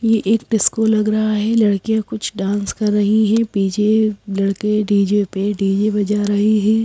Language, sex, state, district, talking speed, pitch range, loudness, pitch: Hindi, female, Madhya Pradesh, Bhopal, 175 wpm, 200-220 Hz, -17 LUFS, 210 Hz